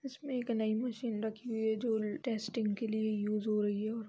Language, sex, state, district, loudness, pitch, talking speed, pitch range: Hindi, female, Bihar, Gopalganj, -35 LUFS, 220 Hz, 250 wpm, 215-235 Hz